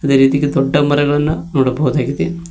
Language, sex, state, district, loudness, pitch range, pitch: Kannada, male, Karnataka, Koppal, -15 LUFS, 135-150 Hz, 145 Hz